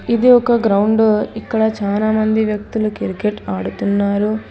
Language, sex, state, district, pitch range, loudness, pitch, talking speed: Telugu, female, Telangana, Hyderabad, 205-220 Hz, -16 LUFS, 215 Hz, 120 wpm